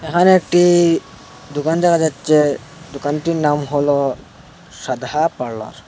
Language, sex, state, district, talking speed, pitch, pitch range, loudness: Bengali, male, Assam, Hailakandi, 100 wpm, 155 Hz, 145-165 Hz, -16 LUFS